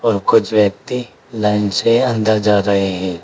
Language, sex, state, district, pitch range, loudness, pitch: Hindi, male, Uttar Pradesh, Saharanpur, 100-110 Hz, -16 LUFS, 105 Hz